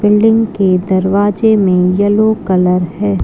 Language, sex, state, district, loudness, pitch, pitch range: Magahi, female, Bihar, Gaya, -12 LUFS, 195 Hz, 180-210 Hz